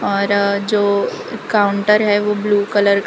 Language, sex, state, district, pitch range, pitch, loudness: Hindi, female, Gujarat, Valsad, 200-210 Hz, 205 Hz, -16 LUFS